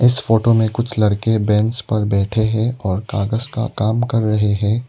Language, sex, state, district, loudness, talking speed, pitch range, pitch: Hindi, male, Arunachal Pradesh, Lower Dibang Valley, -18 LUFS, 195 wpm, 105-115 Hz, 110 Hz